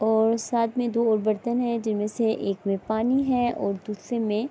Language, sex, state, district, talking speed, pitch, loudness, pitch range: Urdu, female, Andhra Pradesh, Anantapur, 185 wpm, 225 Hz, -25 LUFS, 210-235 Hz